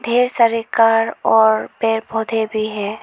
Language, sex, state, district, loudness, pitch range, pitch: Hindi, female, Arunachal Pradesh, Lower Dibang Valley, -17 LUFS, 220-230 Hz, 225 Hz